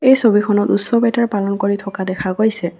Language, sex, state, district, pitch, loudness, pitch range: Assamese, female, Assam, Kamrup Metropolitan, 205 Hz, -16 LUFS, 195-230 Hz